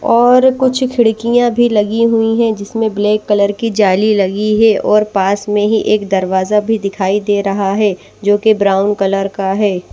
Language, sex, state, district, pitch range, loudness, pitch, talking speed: Hindi, male, Odisha, Nuapada, 200-225 Hz, -13 LUFS, 210 Hz, 180 wpm